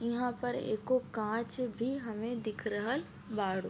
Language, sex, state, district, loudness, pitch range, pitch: Bhojpuri, female, Uttar Pradesh, Deoria, -35 LUFS, 215-250 Hz, 230 Hz